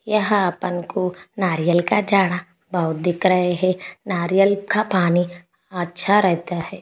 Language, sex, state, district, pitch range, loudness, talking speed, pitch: Hindi, female, Maharashtra, Sindhudurg, 175-195 Hz, -20 LUFS, 140 wpm, 185 Hz